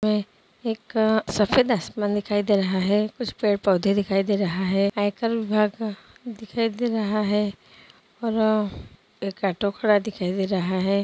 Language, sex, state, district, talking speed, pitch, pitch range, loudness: Hindi, female, Uttar Pradesh, Jyotiba Phule Nagar, 150 wpm, 205 Hz, 200-220 Hz, -24 LUFS